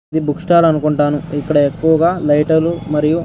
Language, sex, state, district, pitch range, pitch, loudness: Telugu, male, Andhra Pradesh, Sri Satya Sai, 145-165 Hz, 155 Hz, -15 LUFS